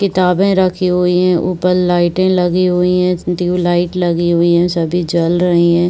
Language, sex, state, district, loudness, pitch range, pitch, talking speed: Hindi, female, Uttar Pradesh, Varanasi, -13 LUFS, 175-180 Hz, 180 Hz, 185 wpm